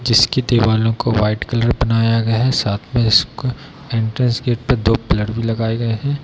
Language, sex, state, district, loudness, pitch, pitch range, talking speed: Hindi, male, Bihar, Darbhanga, -17 LUFS, 115 Hz, 115-125 Hz, 190 wpm